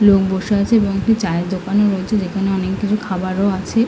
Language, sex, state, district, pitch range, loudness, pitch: Bengali, female, West Bengal, North 24 Parganas, 190-210 Hz, -17 LUFS, 195 Hz